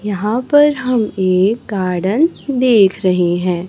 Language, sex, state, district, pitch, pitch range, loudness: Hindi, female, Chhattisgarh, Raipur, 205 Hz, 185-250 Hz, -15 LUFS